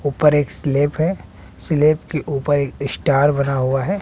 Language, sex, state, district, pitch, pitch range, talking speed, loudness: Hindi, male, Bihar, West Champaran, 145 Hz, 140-150 Hz, 180 wpm, -18 LUFS